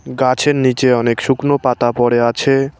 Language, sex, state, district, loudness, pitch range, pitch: Bengali, male, West Bengal, Cooch Behar, -14 LUFS, 120-135 Hz, 130 Hz